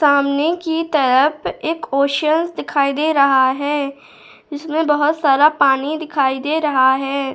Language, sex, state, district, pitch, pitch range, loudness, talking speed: Hindi, female, Goa, North and South Goa, 290 Hz, 275-310 Hz, -16 LUFS, 140 wpm